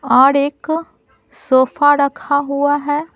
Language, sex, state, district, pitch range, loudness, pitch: Hindi, female, Bihar, Patna, 280-295 Hz, -15 LUFS, 285 Hz